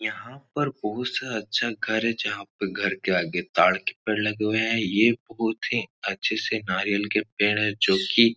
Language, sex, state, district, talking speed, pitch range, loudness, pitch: Hindi, male, Uttar Pradesh, Etah, 215 wpm, 105-115 Hz, -25 LUFS, 110 Hz